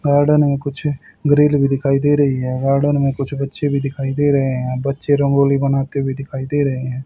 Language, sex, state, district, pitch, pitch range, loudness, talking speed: Hindi, male, Haryana, Rohtak, 140 Hz, 135-145 Hz, -17 LUFS, 220 wpm